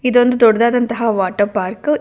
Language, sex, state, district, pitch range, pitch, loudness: Kannada, female, Karnataka, Bangalore, 210-245 Hz, 230 Hz, -15 LUFS